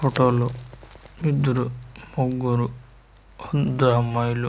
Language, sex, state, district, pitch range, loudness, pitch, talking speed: Telugu, male, Andhra Pradesh, Manyam, 120-130 Hz, -23 LUFS, 125 Hz, 95 wpm